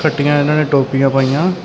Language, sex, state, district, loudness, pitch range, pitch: Punjabi, male, Karnataka, Bangalore, -14 LUFS, 135-155 Hz, 145 Hz